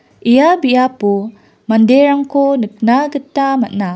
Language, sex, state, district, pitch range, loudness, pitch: Garo, female, Meghalaya, West Garo Hills, 225-275 Hz, -13 LUFS, 255 Hz